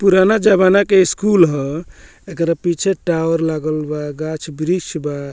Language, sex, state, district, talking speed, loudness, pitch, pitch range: Bhojpuri, male, Bihar, Muzaffarpur, 135 wpm, -16 LUFS, 165 Hz, 155-190 Hz